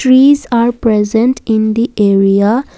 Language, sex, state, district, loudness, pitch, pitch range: English, female, Assam, Kamrup Metropolitan, -11 LUFS, 230 Hz, 215-255 Hz